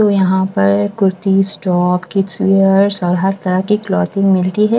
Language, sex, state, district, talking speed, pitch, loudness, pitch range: Hindi, female, Bihar, West Champaran, 175 wpm, 195 Hz, -14 LUFS, 185-195 Hz